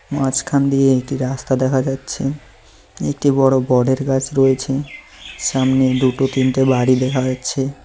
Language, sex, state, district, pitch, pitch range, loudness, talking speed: Bengali, male, West Bengal, Cooch Behar, 130 Hz, 130-135 Hz, -17 LUFS, 130 wpm